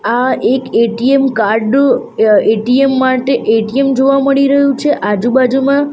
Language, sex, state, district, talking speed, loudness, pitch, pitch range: Gujarati, female, Gujarat, Gandhinagar, 130 wpm, -12 LUFS, 260 Hz, 230-275 Hz